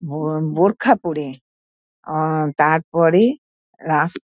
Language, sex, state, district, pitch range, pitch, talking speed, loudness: Bengali, female, West Bengal, North 24 Parganas, 150-170 Hz, 155 Hz, 110 wpm, -18 LUFS